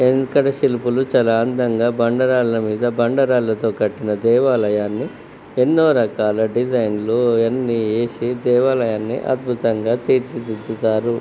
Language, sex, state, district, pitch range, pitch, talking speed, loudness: Telugu, male, Andhra Pradesh, Srikakulam, 110-125 Hz, 120 Hz, 100 wpm, -18 LUFS